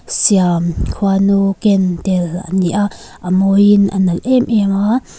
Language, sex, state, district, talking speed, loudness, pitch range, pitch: Mizo, female, Mizoram, Aizawl, 160 wpm, -14 LUFS, 185-205 Hz, 195 Hz